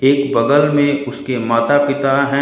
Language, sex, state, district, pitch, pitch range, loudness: Hindi, male, Uttar Pradesh, Lucknow, 140 Hz, 135-145 Hz, -15 LUFS